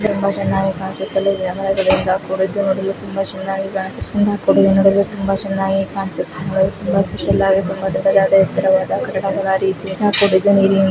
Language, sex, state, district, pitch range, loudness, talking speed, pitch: Kannada, female, Karnataka, Mysore, 190-195 Hz, -17 LUFS, 75 wpm, 195 Hz